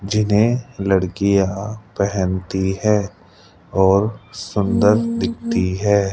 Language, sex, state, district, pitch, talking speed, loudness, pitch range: Hindi, male, Rajasthan, Jaipur, 100 Hz, 80 wpm, -19 LUFS, 95-105 Hz